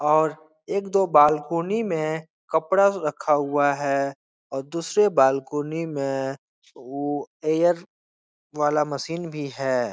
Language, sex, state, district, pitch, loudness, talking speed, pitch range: Hindi, male, Bihar, Jahanabad, 150 Hz, -23 LUFS, 115 wpm, 140-165 Hz